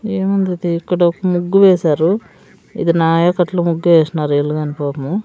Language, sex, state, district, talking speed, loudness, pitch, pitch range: Telugu, female, Andhra Pradesh, Sri Satya Sai, 115 wpm, -15 LUFS, 170 Hz, 160-185 Hz